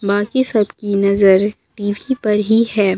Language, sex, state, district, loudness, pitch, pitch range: Hindi, female, Bihar, Katihar, -16 LUFS, 205 Hz, 200-220 Hz